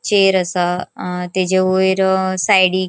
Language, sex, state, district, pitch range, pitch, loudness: Konkani, female, Goa, North and South Goa, 185-190 Hz, 185 Hz, -16 LUFS